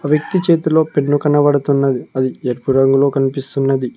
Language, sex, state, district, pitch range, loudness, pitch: Telugu, male, Telangana, Mahabubabad, 135-150 Hz, -15 LUFS, 140 Hz